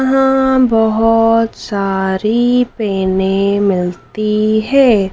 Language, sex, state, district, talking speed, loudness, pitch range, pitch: Hindi, female, Madhya Pradesh, Dhar, 70 wpm, -13 LUFS, 195-245 Hz, 215 Hz